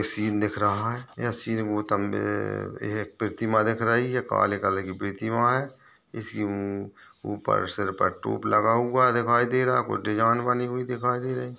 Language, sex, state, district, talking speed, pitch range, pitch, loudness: Hindi, male, Chhattisgarh, Balrampur, 180 wpm, 105-125 Hz, 115 Hz, -26 LUFS